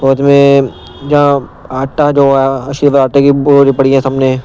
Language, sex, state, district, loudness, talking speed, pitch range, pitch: Hindi, male, Punjab, Pathankot, -10 LUFS, 135 wpm, 135-140 Hz, 135 Hz